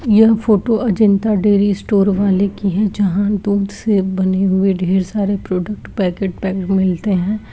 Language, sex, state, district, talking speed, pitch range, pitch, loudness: Hindi, female, Uttarakhand, Uttarkashi, 165 wpm, 190-210 Hz, 200 Hz, -16 LUFS